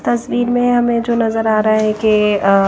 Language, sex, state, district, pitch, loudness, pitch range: Hindi, female, Odisha, Nuapada, 225 Hz, -15 LUFS, 215-240 Hz